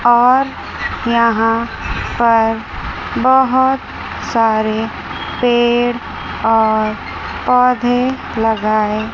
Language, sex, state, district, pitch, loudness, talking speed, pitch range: Hindi, female, Chandigarh, Chandigarh, 235 Hz, -15 LUFS, 60 wpm, 225-250 Hz